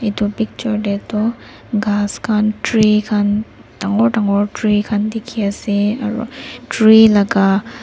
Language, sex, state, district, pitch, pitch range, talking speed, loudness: Nagamese, female, Nagaland, Dimapur, 210 Hz, 205-220 Hz, 140 wpm, -16 LUFS